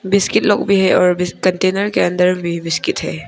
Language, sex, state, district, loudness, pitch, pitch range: Hindi, female, Arunachal Pradesh, Papum Pare, -15 LUFS, 180 Hz, 175-190 Hz